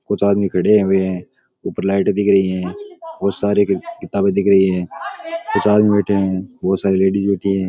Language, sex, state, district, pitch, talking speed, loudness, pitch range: Rajasthani, male, Rajasthan, Nagaur, 100 Hz, 195 wpm, -17 LUFS, 95-105 Hz